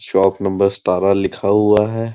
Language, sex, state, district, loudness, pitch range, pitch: Hindi, male, Uttar Pradesh, Muzaffarnagar, -16 LUFS, 95-105 Hz, 100 Hz